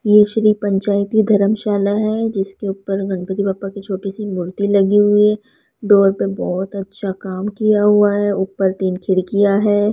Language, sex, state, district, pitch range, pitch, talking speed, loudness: Hindi, female, Rajasthan, Jaipur, 195-210 Hz, 200 Hz, 165 wpm, -17 LUFS